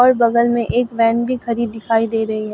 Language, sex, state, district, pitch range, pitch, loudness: Hindi, female, Bihar, Katihar, 225-240 Hz, 235 Hz, -17 LUFS